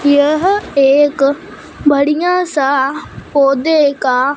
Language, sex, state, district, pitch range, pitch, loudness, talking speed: Hindi, female, Punjab, Fazilka, 275-310 Hz, 285 Hz, -13 LUFS, 80 wpm